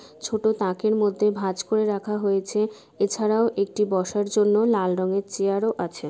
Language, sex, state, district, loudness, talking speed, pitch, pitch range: Bengali, female, West Bengal, Malda, -23 LUFS, 160 wpm, 205 Hz, 195-215 Hz